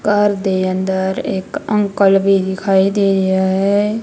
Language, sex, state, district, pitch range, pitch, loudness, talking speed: Punjabi, female, Punjab, Kapurthala, 190-205 Hz, 195 Hz, -15 LUFS, 150 wpm